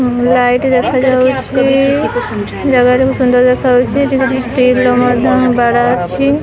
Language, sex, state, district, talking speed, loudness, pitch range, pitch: Odia, female, Odisha, Khordha, 140 wpm, -11 LUFS, 245-265 Hz, 255 Hz